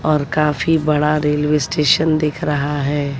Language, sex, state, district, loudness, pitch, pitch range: Hindi, female, Bihar, West Champaran, -17 LUFS, 150 Hz, 145-155 Hz